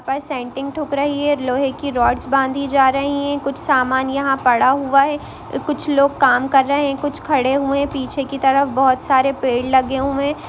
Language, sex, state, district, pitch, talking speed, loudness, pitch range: Hindi, female, Bihar, East Champaran, 275 Hz, 220 wpm, -17 LUFS, 265-285 Hz